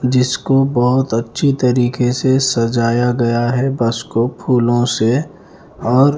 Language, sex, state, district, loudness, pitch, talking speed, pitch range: Hindi, male, Punjab, Fazilka, -15 LUFS, 125 Hz, 125 wpm, 120-130 Hz